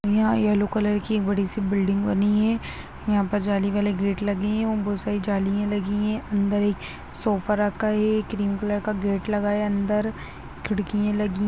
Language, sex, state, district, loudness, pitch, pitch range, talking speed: Hindi, female, Bihar, Begusarai, -24 LUFS, 205 Hz, 200-210 Hz, 205 wpm